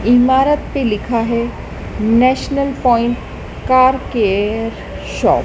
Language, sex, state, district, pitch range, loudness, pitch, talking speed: Hindi, male, Madhya Pradesh, Dhar, 225-260 Hz, -15 LUFS, 240 Hz, 110 wpm